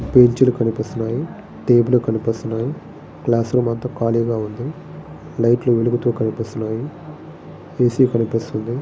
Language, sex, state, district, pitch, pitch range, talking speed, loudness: Telugu, male, Andhra Pradesh, Srikakulam, 120 Hz, 115-130 Hz, 100 wpm, -19 LUFS